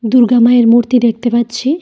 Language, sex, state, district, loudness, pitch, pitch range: Bengali, female, Tripura, Dhalai, -11 LUFS, 240 Hz, 235-245 Hz